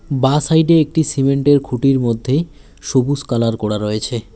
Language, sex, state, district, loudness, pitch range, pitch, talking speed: Bengali, male, West Bengal, Alipurduar, -16 LUFS, 120-145 Hz, 135 Hz, 165 wpm